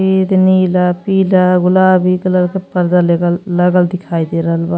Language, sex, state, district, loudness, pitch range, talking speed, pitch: Bhojpuri, female, Uttar Pradesh, Ghazipur, -12 LUFS, 175-185 Hz, 165 wpm, 180 Hz